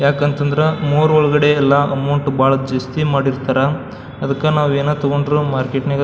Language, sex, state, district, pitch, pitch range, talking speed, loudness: Kannada, male, Karnataka, Belgaum, 140 Hz, 135-150 Hz, 170 wpm, -16 LUFS